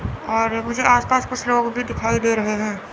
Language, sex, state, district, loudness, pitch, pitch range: Hindi, male, Chandigarh, Chandigarh, -20 LUFS, 230 Hz, 215-245 Hz